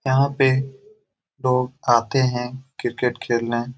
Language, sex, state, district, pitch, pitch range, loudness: Hindi, male, Bihar, Jamui, 130 Hz, 120-135 Hz, -21 LUFS